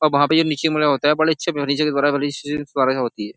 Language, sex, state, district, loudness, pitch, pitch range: Hindi, male, Uttar Pradesh, Jyotiba Phule Nagar, -19 LUFS, 145 Hz, 140-155 Hz